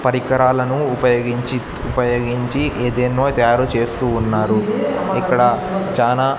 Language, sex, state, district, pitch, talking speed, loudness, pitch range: Telugu, male, Andhra Pradesh, Sri Satya Sai, 125 Hz, 85 wpm, -17 LUFS, 120-130 Hz